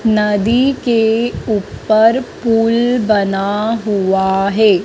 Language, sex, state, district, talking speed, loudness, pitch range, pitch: Hindi, female, Madhya Pradesh, Dhar, 85 wpm, -14 LUFS, 205-230 Hz, 220 Hz